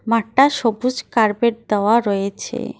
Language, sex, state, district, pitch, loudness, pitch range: Bengali, female, West Bengal, Cooch Behar, 230 Hz, -18 LUFS, 210-240 Hz